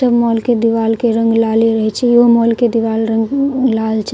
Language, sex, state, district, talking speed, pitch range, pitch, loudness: Maithili, female, Bihar, Katihar, 245 wpm, 225-240 Hz, 230 Hz, -13 LUFS